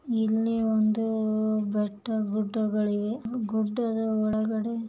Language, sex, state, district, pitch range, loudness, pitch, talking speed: Kannada, female, Karnataka, Belgaum, 215-225 Hz, -27 LUFS, 220 Hz, 75 wpm